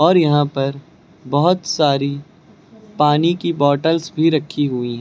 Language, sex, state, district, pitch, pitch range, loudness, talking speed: Hindi, male, Uttar Pradesh, Lucknow, 155 Hz, 145-170 Hz, -17 LUFS, 145 wpm